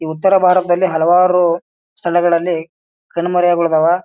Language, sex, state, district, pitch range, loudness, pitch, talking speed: Kannada, male, Karnataka, Bijapur, 170-180 Hz, -14 LUFS, 175 Hz, 105 wpm